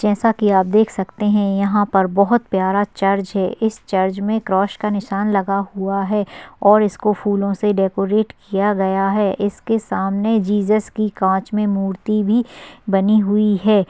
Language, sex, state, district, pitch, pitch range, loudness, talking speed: Hindi, female, Maharashtra, Chandrapur, 205 Hz, 195-210 Hz, -18 LUFS, 170 wpm